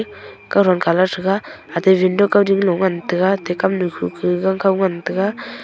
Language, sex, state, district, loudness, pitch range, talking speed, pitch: Wancho, female, Arunachal Pradesh, Longding, -17 LUFS, 180-195 Hz, 180 wpm, 190 Hz